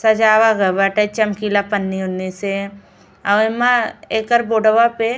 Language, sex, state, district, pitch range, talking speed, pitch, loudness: Bhojpuri, female, Uttar Pradesh, Gorakhpur, 200-225 Hz, 140 wpm, 215 Hz, -16 LUFS